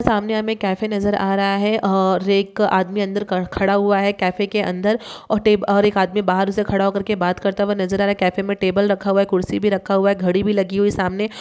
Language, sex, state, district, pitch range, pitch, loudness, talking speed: Hindi, male, Uttar Pradesh, Muzaffarnagar, 195-205 Hz, 200 Hz, -19 LUFS, 265 wpm